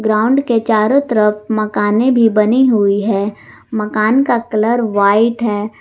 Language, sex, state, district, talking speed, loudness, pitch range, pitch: Hindi, female, Jharkhand, Garhwa, 145 wpm, -14 LUFS, 210-235 Hz, 220 Hz